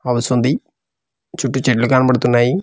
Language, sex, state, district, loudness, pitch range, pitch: Telugu, male, Andhra Pradesh, Manyam, -16 LUFS, 120-130 Hz, 125 Hz